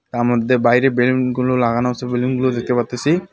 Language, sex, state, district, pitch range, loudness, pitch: Bengali, male, West Bengal, Alipurduar, 120-130 Hz, -17 LUFS, 125 Hz